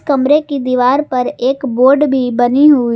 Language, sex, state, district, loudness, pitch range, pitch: Hindi, female, Jharkhand, Garhwa, -12 LUFS, 250-285 Hz, 265 Hz